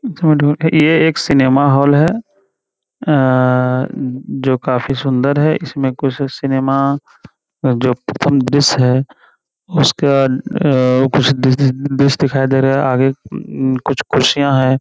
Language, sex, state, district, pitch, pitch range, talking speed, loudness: Hindi, male, Bihar, Jamui, 135 Hz, 130-145 Hz, 135 wpm, -14 LUFS